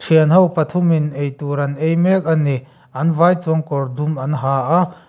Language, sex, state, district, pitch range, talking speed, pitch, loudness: Mizo, male, Mizoram, Aizawl, 145-170 Hz, 190 wpm, 160 Hz, -17 LUFS